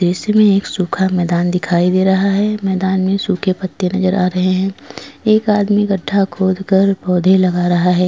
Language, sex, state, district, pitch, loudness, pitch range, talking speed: Hindi, female, Goa, North and South Goa, 190 Hz, -15 LUFS, 180-195 Hz, 185 wpm